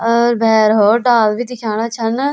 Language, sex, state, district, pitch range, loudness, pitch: Garhwali, female, Uttarakhand, Tehri Garhwal, 220-235 Hz, -14 LUFS, 230 Hz